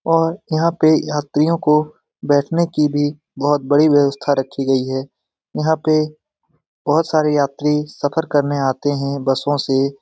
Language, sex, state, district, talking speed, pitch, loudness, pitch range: Hindi, male, Bihar, Lakhisarai, 150 wpm, 145 Hz, -18 LUFS, 140-155 Hz